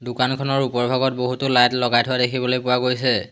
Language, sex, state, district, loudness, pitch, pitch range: Assamese, male, Assam, Hailakandi, -20 LUFS, 125 Hz, 125-130 Hz